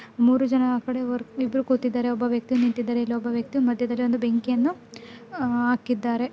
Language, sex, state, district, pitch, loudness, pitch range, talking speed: Kannada, female, Karnataka, Dakshina Kannada, 245 Hz, -24 LUFS, 240-255 Hz, 170 wpm